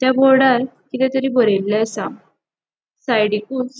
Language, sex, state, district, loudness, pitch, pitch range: Konkani, female, Goa, North and South Goa, -17 LUFS, 250 Hz, 215-265 Hz